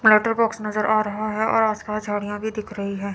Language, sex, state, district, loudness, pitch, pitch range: Hindi, female, Chandigarh, Chandigarh, -22 LUFS, 215 Hz, 210-220 Hz